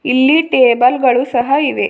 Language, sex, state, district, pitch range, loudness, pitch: Kannada, female, Karnataka, Bidar, 250-280 Hz, -12 LUFS, 260 Hz